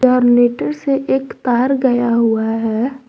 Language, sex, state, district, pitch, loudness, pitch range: Hindi, female, Jharkhand, Garhwa, 245 Hz, -15 LUFS, 235-265 Hz